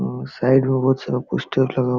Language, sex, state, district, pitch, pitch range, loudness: Hindi, male, Jharkhand, Sahebganj, 130 Hz, 120-130 Hz, -20 LUFS